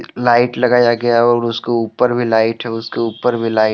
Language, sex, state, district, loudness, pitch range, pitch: Hindi, male, Jharkhand, Deoghar, -15 LUFS, 115-120 Hz, 120 Hz